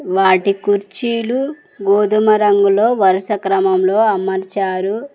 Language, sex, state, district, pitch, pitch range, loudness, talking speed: Telugu, female, Telangana, Mahabubabad, 200 Hz, 190-215 Hz, -15 LUFS, 80 wpm